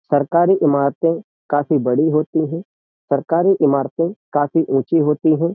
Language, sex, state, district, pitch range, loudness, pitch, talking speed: Hindi, male, Uttar Pradesh, Jyotiba Phule Nagar, 145-165 Hz, -18 LUFS, 155 Hz, 130 wpm